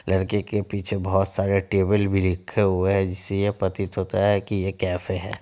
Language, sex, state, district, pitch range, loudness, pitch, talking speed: Hindi, male, Bihar, Kishanganj, 95-100 Hz, -24 LUFS, 95 Hz, 210 wpm